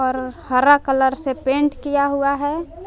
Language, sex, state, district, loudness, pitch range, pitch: Hindi, female, Jharkhand, Palamu, -18 LUFS, 265-290 Hz, 280 Hz